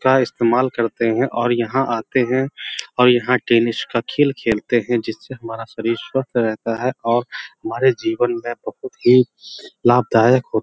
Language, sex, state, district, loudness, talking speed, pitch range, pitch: Hindi, male, Uttar Pradesh, Hamirpur, -18 LUFS, 170 wpm, 115-130 Hz, 120 Hz